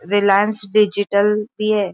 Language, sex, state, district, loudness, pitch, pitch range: Hindi, female, Maharashtra, Aurangabad, -17 LUFS, 205 Hz, 200-210 Hz